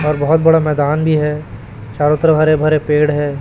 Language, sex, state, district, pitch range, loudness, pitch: Hindi, male, Chhattisgarh, Raipur, 145-155 Hz, -14 LUFS, 150 Hz